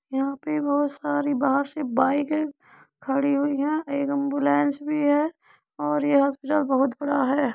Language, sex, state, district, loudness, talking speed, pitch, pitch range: Hindi, female, Uttar Pradesh, Muzaffarnagar, -24 LUFS, 160 wpm, 285 Hz, 275-290 Hz